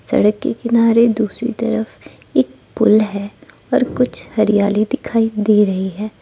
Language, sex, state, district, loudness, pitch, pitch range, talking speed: Hindi, female, Arunachal Pradesh, Lower Dibang Valley, -16 LUFS, 215 Hz, 205-230 Hz, 145 wpm